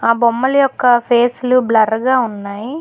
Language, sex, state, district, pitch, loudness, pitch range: Telugu, female, Telangana, Hyderabad, 240 Hz, -14 LUFS, 230-255 Hz